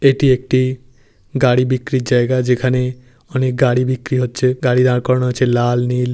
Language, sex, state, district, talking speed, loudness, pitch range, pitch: Bengali, male, West Bengal, Paschim Medinipur, 155 wpm, -16 LUFS, 125-130 Hz, 125 Hz